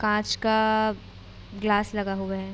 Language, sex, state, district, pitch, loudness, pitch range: Hindi, female, Chhattisgarh, Bilaspur, 205 Hz, -25 LUFS, 190-215 Hz